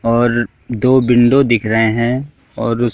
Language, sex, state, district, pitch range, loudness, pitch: Hindi, male, Madhya Pradesh, Katni, 115-125 Hz, -14 LUFS, 120 Hz